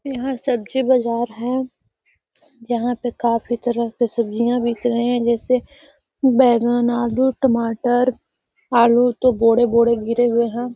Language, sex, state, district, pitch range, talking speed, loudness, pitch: Hindi, female, Bihar, Gaya, 235-250 Hz, 130 wpm, -18 LUFS, 240 Hz